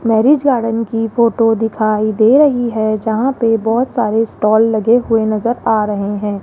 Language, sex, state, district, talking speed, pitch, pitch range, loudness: Hindi, female, Rajasthan, Jaipur, 175 wpm, 225 Hz, 215-235 Hz, -14 LUFS